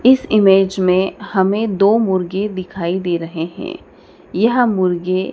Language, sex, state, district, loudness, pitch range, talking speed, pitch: Hindi, female, Madhya Pradesh, Dhar, -16 LUFS, 185-210 Hz, 135 wpm, 190 Hz